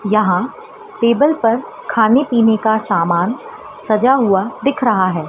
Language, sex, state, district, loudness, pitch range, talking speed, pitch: Hindi, female, Madhya Pradesh, Dhar, -15 LUFS, 210-260 Hz, 135 wpm, 225 Hz